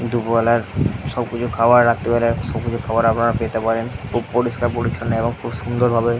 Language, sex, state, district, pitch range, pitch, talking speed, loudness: Bengali, male, West Bengal, Jhargram, 115-120 Hz, 115 Hz, 205 wpm, -19 LUFS